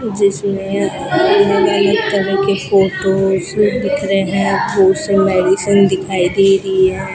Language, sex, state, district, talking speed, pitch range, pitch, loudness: Hindi, female, Rajasthan, Bikaner, 110 wpm, 190-200 Hz, 195 Hz, -14 LUFS